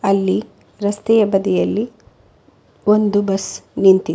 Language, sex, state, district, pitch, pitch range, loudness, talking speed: Kannada, female, Karnataka, Bangalore, 205 Hz, 195-210 Hz, -17 LUFS, 85 wpm